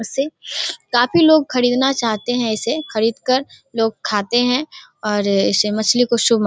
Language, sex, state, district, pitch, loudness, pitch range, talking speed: Hindi, female, Bihar, Darbhanga, 240 Hz, -17 LUFS, 220-260 Hz, 165 wpm